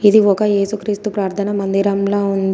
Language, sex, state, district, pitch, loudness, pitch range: Telugu, female, Telangana, Komaram Bheem, 200 Hz, -17 LUFS, 195-210 Hz